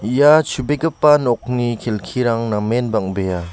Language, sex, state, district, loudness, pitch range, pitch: Garo, male, Meghalaya, West Garo Hills, -17 LUFS, 110-145 Hz, 120 Hz